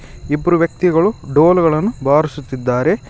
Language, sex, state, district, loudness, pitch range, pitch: Kannada, male, Karnataka, Koppal, -15 LUFS, 145-175 Hz, 155 Hz